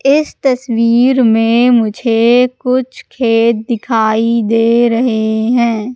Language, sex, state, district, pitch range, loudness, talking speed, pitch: Hindi, female, Madhya Pradesh, Katni, 225-250 Hz, -12 LUFS, 100 wpm, 235 Hz